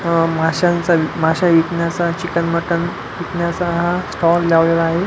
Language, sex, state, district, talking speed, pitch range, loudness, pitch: Marathi, male, Maharashtra, Pune, 120 wpm, 165-175 Hz, -17 LUFS, 170 Hz